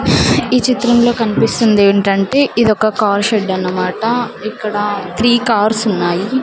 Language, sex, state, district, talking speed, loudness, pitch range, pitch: Telugu, female, Andhra Pradesh, Sri Satya Sai, 95 wpm, -14 LUFS, 200-240 Hz, 215 Hz